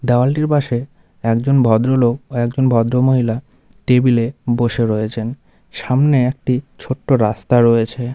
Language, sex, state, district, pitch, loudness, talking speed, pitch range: Bengali, male, West Bengal, Dakshin Dinajpur, 125 Hz, -16 LUFS, 120 wpm, 115-130 Hz